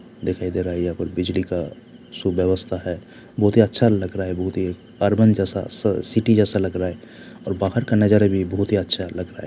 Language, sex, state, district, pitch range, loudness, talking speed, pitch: Hindi, male, Jharkhand, Jamtara, 90-105 Hz, -21 LUFS, 235 wpm, 95 Hz